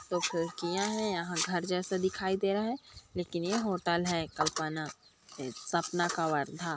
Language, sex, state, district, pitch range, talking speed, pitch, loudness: Hindi, female, Chhattisgarh, Kabirdham, 160-190 Hz, 150 wpm, 175 Hz, -33 LUFS